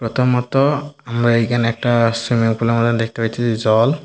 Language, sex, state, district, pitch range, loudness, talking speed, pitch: Bengali, male, Tripura, Dhalai, 115-125 Hz, -17 LUFS, 190 wpm, 115 Hz